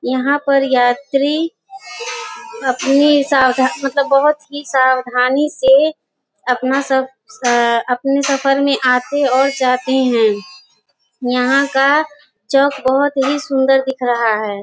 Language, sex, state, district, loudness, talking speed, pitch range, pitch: Hindi, female, Uttar Pradesh, Gorakhpur, -15 LUFS, 115 wpm, 255-285 Hz, 270 Hz